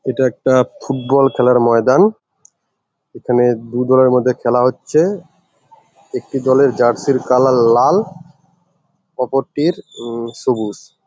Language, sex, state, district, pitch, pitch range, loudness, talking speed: Bengali, male, West Bengal, Jalpaiguri, 130 Hz, 125-160 Hz, -15 LUFS, 115 wpm